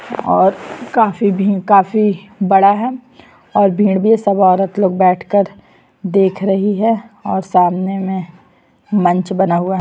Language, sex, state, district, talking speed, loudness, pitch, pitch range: Hindi, female, Chhattisgarh, Sukma, 145 wpm, -14 LUFS, 195 Hz, 190-205 Hz